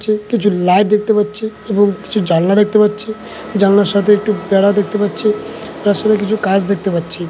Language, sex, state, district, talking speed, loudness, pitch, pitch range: Bengali, male, West Bengal, Malda, 180 wpm, -14 LUFS, 205 Hz, 195-215 Hz